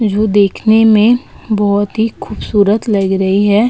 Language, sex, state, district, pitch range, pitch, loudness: Hindi, female, Uttar Pradesh, Budaun, 205-220 Hz, 210 Hz, -12 LUFS